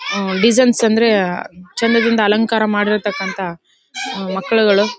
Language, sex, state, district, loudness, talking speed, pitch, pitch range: Kannada, female, Karnataka, Bellary, -15 LUFS, 70 wpm, 210 Hz, 195-230 Hz